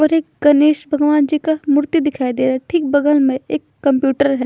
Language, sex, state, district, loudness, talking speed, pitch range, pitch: Hindi, female, Chandigarh, Chandigarh, -16 LUFS, 200 wpm, 270-300 Hz, 290 Hz